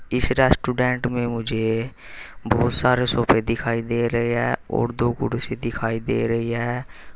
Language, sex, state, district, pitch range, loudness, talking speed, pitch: Hindi, male, Uttar Pradesh, Saharanpur, 115-125 Hz, -22 LUFS, 150 wpm, 120 Hz